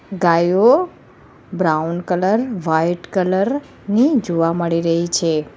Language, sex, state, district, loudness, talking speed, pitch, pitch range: Gujarati, female, Gujarat, Valsad, -17 LUFS, 110 wpm, 175 Hz, 165-205 Hz